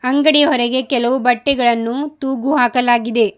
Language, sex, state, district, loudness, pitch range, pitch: Kannada, female, Karnataka, Bidar, -15 LUFS, 240-280 Hz, 250 Hz